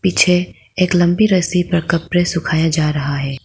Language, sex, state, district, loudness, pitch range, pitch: Hindi, female, Arunachal Pradesh, Lower Dibang Valley, -16 LUFS, 160-180 Hz, 175 Hz